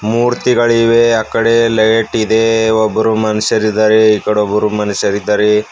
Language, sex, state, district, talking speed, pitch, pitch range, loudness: Kannada, male, Karnataka, Bidar, 105 wpm, 110 Hz, 105-115 Hz, -12 LUFS